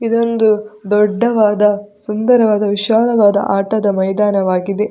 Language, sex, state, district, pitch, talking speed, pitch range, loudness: Kannada, female, Karnataka, Dakshina Kannada, 210 Hz, 75 wpm, 205-220 Hz, -14 LUFS